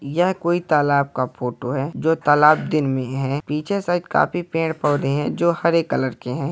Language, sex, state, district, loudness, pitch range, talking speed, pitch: Hindi, male, Bihar, Purnia, -20 LUFS, 135-170 Hz, 195 wpm, 150 Hz